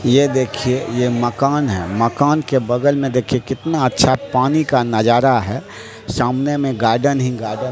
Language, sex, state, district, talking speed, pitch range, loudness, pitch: Hindi, male, Bihar, Katihar, 170 wpm, 120-140 Hz, -17 LUFS, 130 Hz